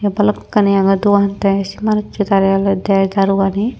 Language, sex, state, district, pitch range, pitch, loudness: Chakma, female, Tripura, Unakoti, 195-205 Hz, 195 Hz, -15 LUFS